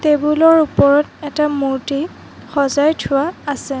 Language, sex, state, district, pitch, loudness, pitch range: Assamese, female, Assam, Sonitpur, 295 Hz, -16 LUFS, 280-305 Hz